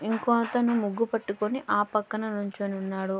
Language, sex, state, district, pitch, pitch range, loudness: Telugu, female, Andhra Pradesh, Guntur, 215 Hz, 200-230 Hz, -28 LUFS